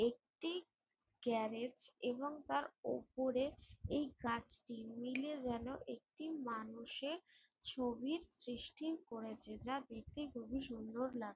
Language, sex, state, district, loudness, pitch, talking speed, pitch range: Bengali, female, West Bengal, Jalpaiguri, -44 LUFS, 250 Hz, 100 wpm, 235-290 Hz